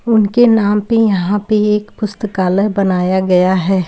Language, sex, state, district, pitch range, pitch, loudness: Hindi, female, Bihar, Begusarai, 190-215 Hz, 205 Hz, -14 LUFS